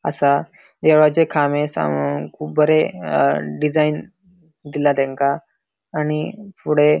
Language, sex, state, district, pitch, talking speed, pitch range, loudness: Konkani, male, Goa, North and South Goa, 150 Hz, 95 wpm, 140-155 Hz, -19 LUFS